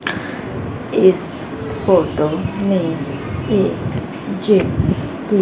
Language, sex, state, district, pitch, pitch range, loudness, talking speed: Hindi, female, Haryana, Rohtak, 185 Hz, 140-195 Hz, -18 LUFS, 65 wpm